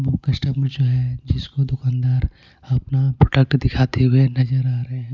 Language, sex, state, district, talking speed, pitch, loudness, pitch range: Hindi, male, Punjab, Pathankot, 165 wpm, 130 Hz, -19 LUFS, 125-135 Hz